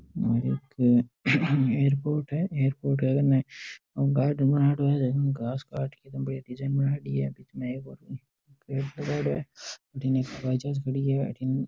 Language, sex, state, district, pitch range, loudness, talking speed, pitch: Marwari, male, Rajasthan, Nagaur, 130-140 Hz, -27 LUFS, 170 wpm, 135 Hz